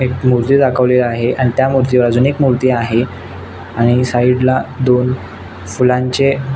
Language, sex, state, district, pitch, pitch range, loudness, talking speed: Marathi, male, Maharashtra, Nagpur, 125 Hz, 120-130 Hz, -13 LUFS, 165 wpm